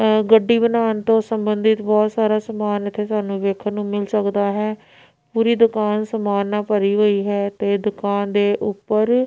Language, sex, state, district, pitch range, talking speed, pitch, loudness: Punjabi, female, Punjab, Pathankot, 205-220 Hz, 175 wpm, 210 Hz, -19 LUFS